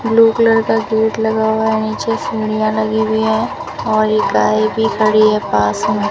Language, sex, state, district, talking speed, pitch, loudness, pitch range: Hindi, female, Rajasthan, Bikaner, 195 wpm, 215 Hz, -15 LUFS, 210-220 Hz